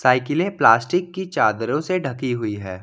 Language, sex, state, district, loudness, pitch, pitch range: Hindi, male, Jharkhand, Ranchi, -20 LUFS, 135 Hz, 115-175 Hz